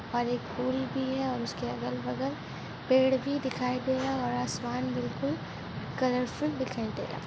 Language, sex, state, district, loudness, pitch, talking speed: Hindi, female, Jharkhand, Jamtara, -31 LUFS, 250 Hz, 200 wpm